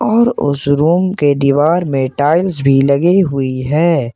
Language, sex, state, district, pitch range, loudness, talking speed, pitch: Hindi, male, Jharkhand, Ranchi, 140-175 Hz, -13 LUFS, 160 wpm, 145 Hz